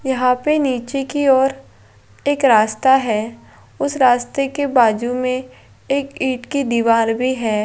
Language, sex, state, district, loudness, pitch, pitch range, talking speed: Hindi, female, Bihar, Purnia, -17 LUFS, 255 Hz, 235-275 Hz, 165 wpm